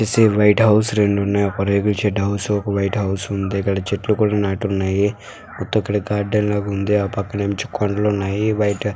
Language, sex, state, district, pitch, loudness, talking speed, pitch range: Telugu, female, Andhra Pradesh, Visakhapatnam, 100 Hz, -19 LUFS, 185 wpm, 100-105 Hz